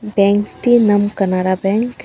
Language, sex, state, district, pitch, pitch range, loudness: Bengali, female, West Bengal, Alipurduar, 205 Hz, 195-215 Hz, -15 LUFS